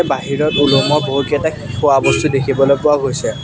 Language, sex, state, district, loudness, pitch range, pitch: Assamese, male, Assam, Sonitpur, -14 LUFS, 135-150 Hz, 140 Hz